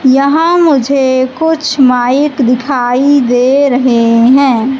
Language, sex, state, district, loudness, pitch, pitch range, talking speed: Hindi, female, Madhya Pradesh, Katni, -9 LUFS, 265 Hz, 250-285 Hz, 100 wpm